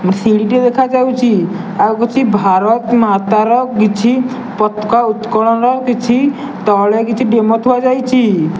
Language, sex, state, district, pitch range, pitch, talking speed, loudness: Odia, male, Odisha, Nuapada, 215-250 Hz, 230 Hz, 120 wpm, -12 LUFS